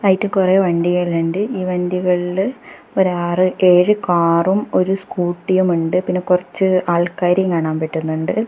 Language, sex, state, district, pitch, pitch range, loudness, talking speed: Malayalam, female, Kerala, Kasaragod, 180 Hz, 175-190 Hz, -17 LUFS, 105 wpm